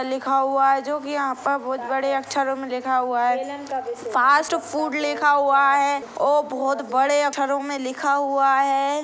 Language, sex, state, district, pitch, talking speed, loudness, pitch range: Hindi, female, Chhattisgarh, Sukma, 275 Hz, 175 wpm, -21 LUFS, 265-285 Hz